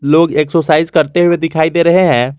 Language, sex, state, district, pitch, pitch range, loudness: Hindi, male, Jharkhand, Garhwa, 160 Hz, 150-170 Hz, -11 LUFS